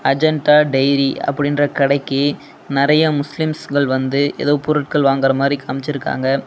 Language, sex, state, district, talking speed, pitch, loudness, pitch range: Tamil, male, Tamil Nadu, Nilgiris, 110 wpm, 140 Hz, -17 LUFS, 135-150 Hz